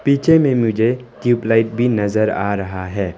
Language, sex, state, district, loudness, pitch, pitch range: Hindi, male, Arunachal Pradesh, Longding, -17 LUFS, 115 Hz, 100-125 Hz